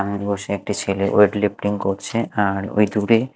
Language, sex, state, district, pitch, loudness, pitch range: Bengali, male, Odisha, Malkangiri, 100 Hz, -20 LUFS, 100-105 Hz